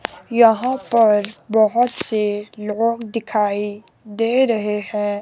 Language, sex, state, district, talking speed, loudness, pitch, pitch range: Hindi, female, Himachal Pradesh, Shimla, 105 wpm, -19 LUFS, 220 Hz, 210-230 Hz